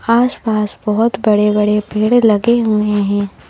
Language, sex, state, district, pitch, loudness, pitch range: Hindi, female, Madhya Pradesh, Bhopal, 210 Hz, -14 LUFS, 210-230 Hz